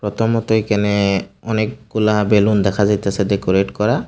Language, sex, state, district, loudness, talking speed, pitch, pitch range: Bengali, male, Tripura, Unakoti, -17 LUFS, 115 wpm, 105 Hz, 100-110 Hz